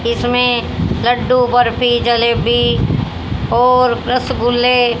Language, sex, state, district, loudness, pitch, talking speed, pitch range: Hindi, female, Haryana, Rohtak, -14 LUFS, 240 Hz, 70 wpm, 195-245 Hz